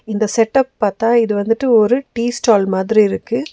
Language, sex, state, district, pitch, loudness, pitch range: Tamil, female, Tamil Nadu, Nilgiris, 225 Hz, -15 LUFS, 215-240 Hz